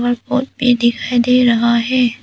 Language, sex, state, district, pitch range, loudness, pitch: Hindi, female, Arunachal Pradesh, Papum Pare, 235-250 Hz, -15 LUFS, 245 Hz